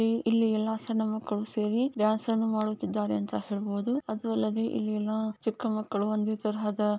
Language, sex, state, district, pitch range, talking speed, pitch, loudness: Kannada, female, Karnataka, Bellary, 210-225 Hz, 145 wpm, 215 Hz, -30 LUFS